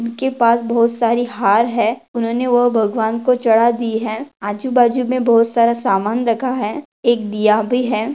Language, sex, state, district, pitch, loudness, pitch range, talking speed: Hindi, female, Maharashtra, Pune, 235 Hz, -16 LUFS, 225-245 Hz, 175 wpm